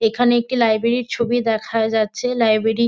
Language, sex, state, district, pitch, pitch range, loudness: Bengali, female, West Bengal, North 24 Parganas, 230 Hz, 220-240 Hz, -18 LUFS